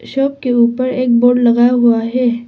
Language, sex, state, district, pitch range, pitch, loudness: Hindi, female, Arunachal Pradesh, Papum Pare, 235-255 Hz, 245 Hz, -13 LUFS